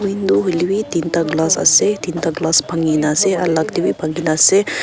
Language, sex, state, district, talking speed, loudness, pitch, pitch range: Nagamese, female, Nagaland, Kohima, 200 wpm, -15 LUFS, 170 Hz, 160-195 Hz